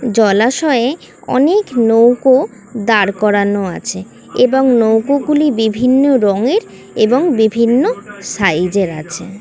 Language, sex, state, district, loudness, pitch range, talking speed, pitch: Bengali, female, West Bengal, Kolkata, -13 LUFS, 205-260 Hz, 100 wpm, 230 Hz